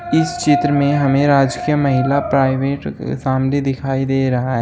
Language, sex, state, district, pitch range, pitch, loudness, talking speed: Hindi, male, Uttar Pradesh, Shamli, 135-145 Hz, 135 Hz, -16 LUFS, 155 wpm